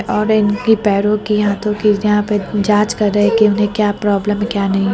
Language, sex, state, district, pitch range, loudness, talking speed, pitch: Hindi, female, Bihar, Lakhisarai, 205-210 Hz, -15 LUFS, 245 wpm, 210 Hz